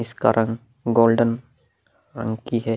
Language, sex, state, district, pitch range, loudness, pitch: Hindi, male, Bihar, Vaishali, 115-120 Hz, -21 LUFS, 115 Hz